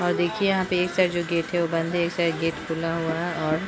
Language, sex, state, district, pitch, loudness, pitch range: Hindi, female, Uttar Pradesh, Ghazipur, 170 Hz, -24 LUFS, 165-175 Hz